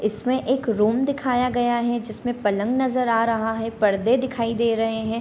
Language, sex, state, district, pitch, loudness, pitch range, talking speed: Hindi, female, Bihar, Darbhanga, 230 Hz, -22 LUFS, 225-250 Hz, 195 wpm